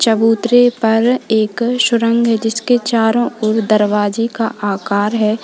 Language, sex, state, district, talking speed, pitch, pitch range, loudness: Hindi, female, Uttar Pradesh, Lalitpur, 130 wpm, 225 Hz, 215-235 Hz, -14 LUFS